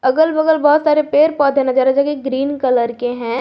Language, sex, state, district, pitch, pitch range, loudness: Hindi, female, Jharkhand, Garhwa, 280 Hz, 260-300 Hz, -15 LUFS